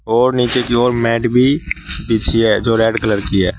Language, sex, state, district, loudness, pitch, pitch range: Hindi, male, Uttar Pradesh, Saharanpur, -15 LUFS, 115 Hz, 110-125 Hz